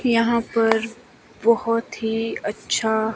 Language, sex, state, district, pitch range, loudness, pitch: Hindi, male, Himachal Pradesh, Shimla, 220-230 Hz, -22 LUFS, 225 Hz